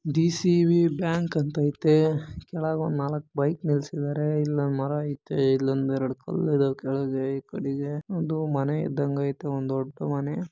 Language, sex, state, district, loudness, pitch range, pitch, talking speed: Kannada, male, Karnataka, Bellary, -26 LUFS, 140-160 Hz, 145 Hz, 125 wpm